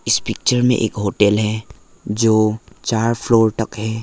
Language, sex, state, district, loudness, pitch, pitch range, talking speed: Hindi, male, Arunachal Pradesh, Lower Dibang Valley, -18 LUFS, 110 Hz, 105-115 Hz, 165 wpm